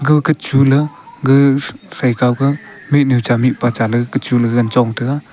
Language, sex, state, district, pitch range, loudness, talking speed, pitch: Wancho, male, Arunachal Pradesh, Longding, 120-145 Hz, -15 LUFS, 155 wpm, 135 Hz